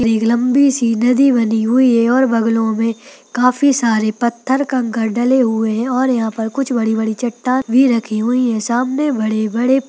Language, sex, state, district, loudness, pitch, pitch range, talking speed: Hindi, female, Uttarakhand, Tehri Garhwal, -15 LUFS, 240 Hz, 225-255 Hz, 170 wpm